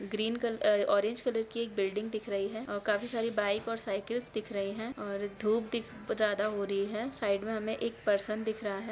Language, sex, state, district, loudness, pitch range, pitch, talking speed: Hindi, female, Chhattisgarh, Raigarh, -33 LUFS, 205-225 Hz, 215 Hz, 235 wpm